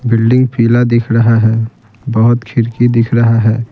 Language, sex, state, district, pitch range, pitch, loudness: Hindi, male, Bihar, Patna, 115-120 Hz, 115 Hz, -11 LUFS